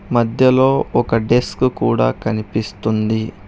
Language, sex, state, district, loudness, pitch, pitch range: Telugu, male, Telangana, Hyderabad, -17 LUFS, 110 Hz, 110-125 Hz